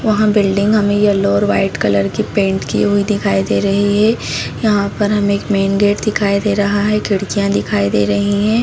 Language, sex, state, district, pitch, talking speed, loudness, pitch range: Hindi, female, Chhattisgarh, Bastar, 200 Hz, 210 wpm, -15 LUFS, 195-210 Hz